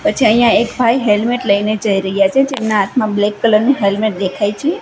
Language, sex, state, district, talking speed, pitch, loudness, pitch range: Gujarati, female, Gujarat, Gandhinagar, 210 wpm, 220 Hz, -14 LUFS, 205-245 Hz